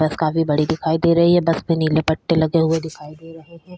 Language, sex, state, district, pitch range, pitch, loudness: Hindi, female, Chhattisgarh, Korba, 155-165 Hz, 160 Hz, -18 LUFS